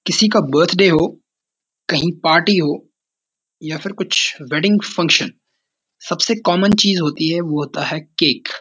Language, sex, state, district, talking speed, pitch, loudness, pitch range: Hindi, male, Uttarakhand, Uttarkashi, 155 wpm, 175 Hz, -16 LUFS, 155-195 Hz